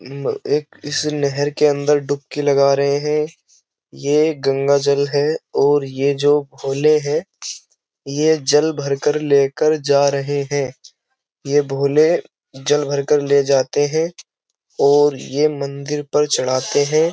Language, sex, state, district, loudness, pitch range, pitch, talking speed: Hindi, male, Uttar Pradesh, Jyotiba Phule Nagar, -18 LUFS, 140-150 Hz, 145 Hz, 140 wpm